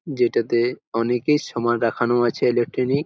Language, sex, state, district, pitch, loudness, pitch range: Bengali, male, West Bengal, Jalpaiguri, 120 Hz, -21 LUFS, 120-140 Hz